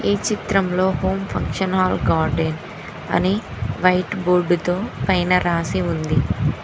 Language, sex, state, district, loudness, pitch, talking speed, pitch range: Telugu, female, Telangana, Mahabubabad, -20 LUFS, 180 Hz, 110 wpm, 170-190 Hz